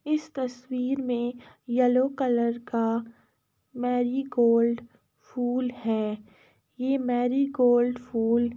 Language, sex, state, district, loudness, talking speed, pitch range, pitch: Hindi, female, Uttar Pradesh, Jalaun, -26 LUFS, 90 wpm, 235-255 Hz, 245 Hz